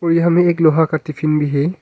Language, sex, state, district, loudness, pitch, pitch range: Hindi, male, Arunachal Pradesh, Longding, -15 LUFS, 160 Hz, 155-170 Hz